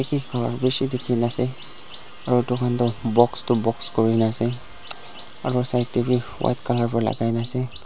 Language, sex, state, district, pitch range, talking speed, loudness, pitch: Nagamese, male, Nagaland, Dimapur, 115-125 Hz, 190 wpm, -23 LUFS, 120 Hz